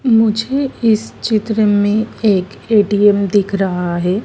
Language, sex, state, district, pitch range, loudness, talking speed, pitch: Hindi, female, Madhya Pradesh, Dhar, 200-220 Hz, -15 LUFS, 125 wpm, 210 Hz